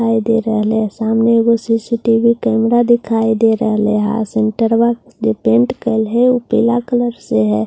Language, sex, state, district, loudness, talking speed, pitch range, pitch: Hindi, female, Bihar, Katihar, -14 LUFS, 155 wpm, 220-235 Hz, 225 Hz